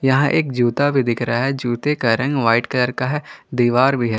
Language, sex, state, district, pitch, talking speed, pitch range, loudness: Hindi, male, Jharkhand, Garhwa, 125 Hz, 245 wpm, 120-140 Hz, -18 LUFS